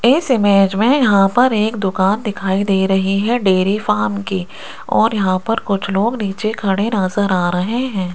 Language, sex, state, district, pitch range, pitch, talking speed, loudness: Hindi, female, Rajasthan, Jaipur, 190-220 Hz, 200 Hz, 185 wpm, -16 LUFS